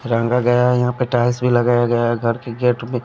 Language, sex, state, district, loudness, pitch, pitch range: Hindi, male, Punjab, Kapurthala, -17 LUFS, 120 Hz, 120-125 Hz